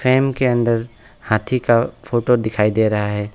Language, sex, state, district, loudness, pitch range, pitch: Hindi, male, West Bengal, Alipurduar, -18 LUFS, 105-125 Hz, 115 Hz